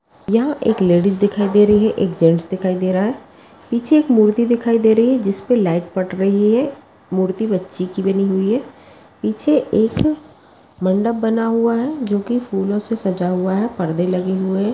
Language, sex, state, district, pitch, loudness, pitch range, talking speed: Hindi, female, Bihar, Begusarai, 210 Hz, -17 LUFS, 190-230 Hz, 195 wpm